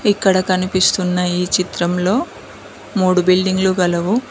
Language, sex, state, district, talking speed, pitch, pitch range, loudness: Telugu, female, Telangana, Mahabubabad, 95 wpm, 185 Hz, 180-190 Hz, -16 LUFS